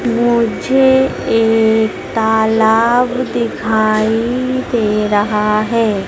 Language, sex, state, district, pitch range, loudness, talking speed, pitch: Hindi, female, Madhya Pradesh, Dhar, 215-240 Hz, -14 LUFS, 70 wpm, 225 Hz